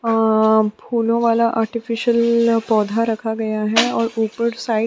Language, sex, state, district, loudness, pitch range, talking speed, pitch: Hindi, female, Chhattisgarh, Sukma, -18 LUFS, 220-230 Hz, 150 wpm, 230 Hz